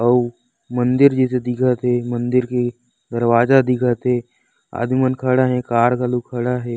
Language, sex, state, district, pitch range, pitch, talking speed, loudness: Chhattisgarhi, male, Chhattisgarh, Raigarh, 120-125 Hz, 125 Hz, 150 wpm, -18 LUFS